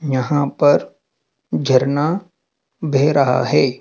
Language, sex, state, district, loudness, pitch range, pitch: Hindi, male, Madhya Pradesh, Dhar, -17 LUFS, 135-150 Hz, 140 Hz